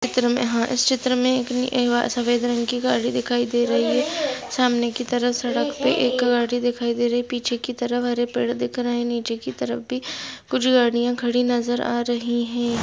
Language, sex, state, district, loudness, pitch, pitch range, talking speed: Hindi, female, Maharashtra, Nagpur, -22 LUFS, 245 Hz, 240-250 Hz, 210 wpm